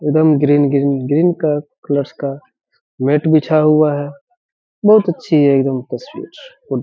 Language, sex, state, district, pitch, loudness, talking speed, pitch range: Hindi, male, Bihar, Saharsa, 150 Hz, -15 LUFS, 150 wpm, 140-165 Hz